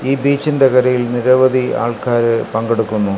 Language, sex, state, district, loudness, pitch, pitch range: Malayalam, male, Kerala, Kasaragod, -14 LUFS, 125 Hz, 115-130 Hz